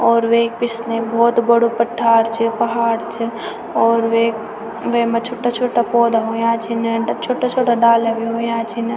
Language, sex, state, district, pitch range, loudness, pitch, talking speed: Garhwali, female, Uttarakhand, Tehri Garhwal, 230-235 Hz, -17 LUFS, 230 Hz, 140 wpm